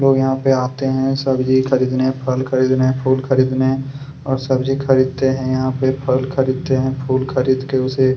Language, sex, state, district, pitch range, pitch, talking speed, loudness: Hindi, male, Chhattisgarh, Kabirdham, 130-135 Hz, 130 Hz, 185 wpm, -17 LUFS